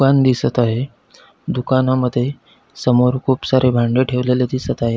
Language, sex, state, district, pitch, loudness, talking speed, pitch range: Marathi, male, Maharashtra, Pune, 125 Hz, -17 LUFS, 135 wpm, 125-130 Hz